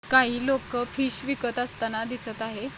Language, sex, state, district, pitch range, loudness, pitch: Marathi, female, Maharashtra, Chandrapur, 225-260 Hz, -27 LUFS, 245 Hz